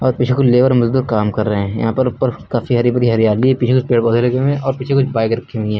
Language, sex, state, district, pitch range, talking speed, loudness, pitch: Hindi, male, Uttar Pradesh, Lucknow, 115-130 Hz, 320 wpm, -15 LUFS, 120 Hz